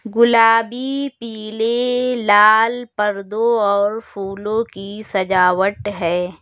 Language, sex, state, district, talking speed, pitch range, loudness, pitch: Hindi, male, Uttar Pradesh, Lucknow, 85 wpm, 200-230 Hz, -17 LUFS, 215 Hz